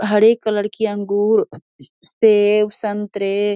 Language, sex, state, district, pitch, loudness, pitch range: Hindi, female, Bihar, Saharsa, 210 Hz, -17 LUFS, 205-215 Hz